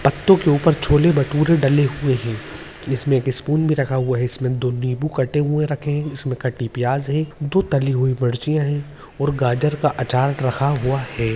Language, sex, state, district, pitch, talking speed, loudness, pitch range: Hindi, male, Uttarakhand, Tehri Garhwal, 140 Hz, 195 wpm, -19 LUFS, 130-150 Hz